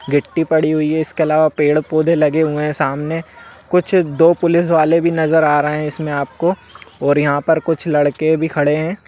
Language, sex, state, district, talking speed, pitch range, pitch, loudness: Hindi, male, Jharkhand, Sahebganj, 225 wpm, 150-165 Hz, 155 Hz, -16 LUFS